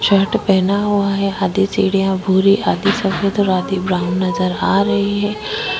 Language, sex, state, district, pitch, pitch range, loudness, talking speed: Hindi, female, Chhattisgarh, Korba, 195 Hz, 190-200 Hz, -16 LUFS, 165 wpm